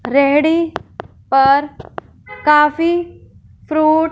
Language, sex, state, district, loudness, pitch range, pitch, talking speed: Hindi, female, Punjab, Fazilka, -14 LUFS, 280-330 Hz, 305 Hz, 75 wpm